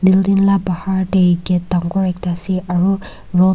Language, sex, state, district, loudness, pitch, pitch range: Nagamese, female, Nagaland, Kohima, -17 LUFS, 185 Hz, 180-190 Hz